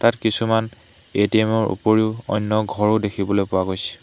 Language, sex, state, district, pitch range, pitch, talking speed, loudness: Assamese, male, Assam, Hailakandi, 100-110 Hz, 110 Hz, 150 wpm, -20 LUFS